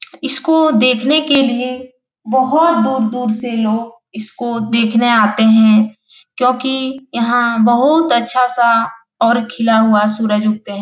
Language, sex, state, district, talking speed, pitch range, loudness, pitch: Hindi, female, Bihar, Jahanabad, 135 wpm, 225-255 Hz, -14 LUFS, 235 Hz